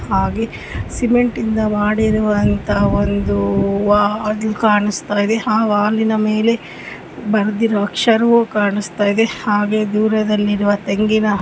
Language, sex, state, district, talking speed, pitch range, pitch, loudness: Kannada, female, Karnataka, Mysore, 100 wpm, 205-220 Hz, 210 Hz, -16 LUFS